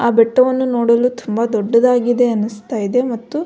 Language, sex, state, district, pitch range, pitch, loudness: Kannada, female, Karnataka, Belgaum, 230-250 Hz, 240 Hz, -16 LUFS